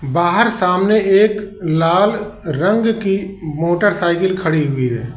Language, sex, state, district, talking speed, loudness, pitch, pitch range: Hindi, male, Uttar Pradesh, Lalitpur, 115 wpm, -16 LUFS, 185 Hz, 165-205 Hz